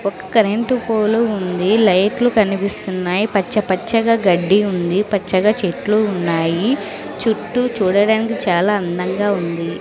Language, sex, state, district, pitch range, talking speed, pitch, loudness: Telugu, female, Andhra Pradesh, Sri Satya Sai, 185-220 Hz, 105 wpm, 200 Hz, -17 LUFS